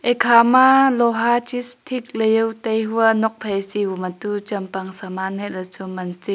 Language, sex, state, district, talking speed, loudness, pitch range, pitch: Wancho, female, Arunachal Pradesh, Longding, 210 wpm, -19 LUFS, 190-235 Hz, 220 Hz